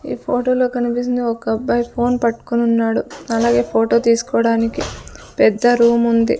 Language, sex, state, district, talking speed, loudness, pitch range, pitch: Telugu, female, Andhra Pradesh, Sri Satya Sai, 130 wpm, -17 LUFS, 230-240 Hz, 235 Hz